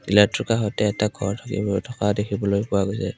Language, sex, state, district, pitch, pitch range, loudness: Assamese, male, Assam, Kamrup Metropolitan, 105 Hz, 100-110 Hz, -23 LUFS